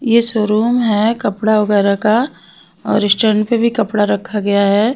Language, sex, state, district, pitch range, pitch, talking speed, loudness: Hindi, female, Bihar, West Champaran, 205-230 Hz, 215 Hz, 170 wpm, -14 LUFS